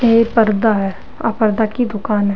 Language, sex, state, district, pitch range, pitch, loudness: Rajasthani, female, Rajasthan, Nagaur, 210-230 Hz, 220 Hz, -16 LUFS